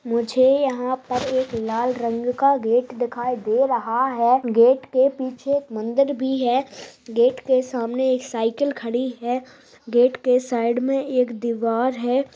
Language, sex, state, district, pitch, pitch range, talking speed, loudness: Hindi, female, Bihar, Bhagalpur, 250 Hz, 235-260 Hz, 155 wpm, -21 LUFS